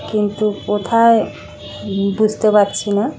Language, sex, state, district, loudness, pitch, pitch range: Bengali, female, West Bengal, Kolkata, -16 LUFS, 205 Hz, 195-215 Hz